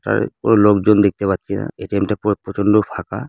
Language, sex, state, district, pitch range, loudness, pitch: Bengali, male, West Bengal, Jalpaiguri, 100-105 Hz, -17 LUFS, 100 Hz